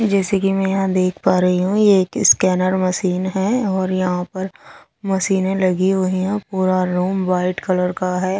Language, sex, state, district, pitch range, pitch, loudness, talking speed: Hindi, female, Odisha, Sambalpur, 185-195 Hz, 185 Hz, -18 LUFS, 185 wpm